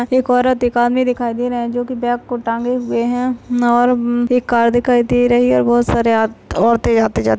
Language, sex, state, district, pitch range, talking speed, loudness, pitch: Hindi, female, Bihar, Jahanabad, 235-245 Hz, 245 wpm, -15 LUFS, 240 Hz